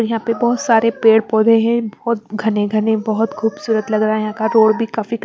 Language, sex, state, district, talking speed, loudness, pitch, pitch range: Hindi, female, Bihar, West Champaran, 215 wpm, -16 LUFS, 225 Hz, 215-230 Hz